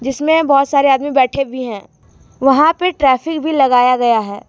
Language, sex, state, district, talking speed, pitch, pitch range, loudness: Hindi, female, Jharkhand, Deoghar, 185 wpm, 270 Hz, 250-300 Hz, -14 LUFS